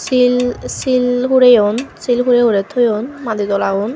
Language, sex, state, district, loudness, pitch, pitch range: Chakma, female, Tripura, Unakoti, -14 LUFS, 245 Hz, 215-250 Hz